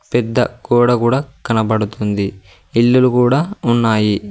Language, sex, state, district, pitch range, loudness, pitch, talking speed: Telugu, male, Telangana, Mahabubabad, 105-125 Hz, -15 LUFS, 120 Hz, 95 wpm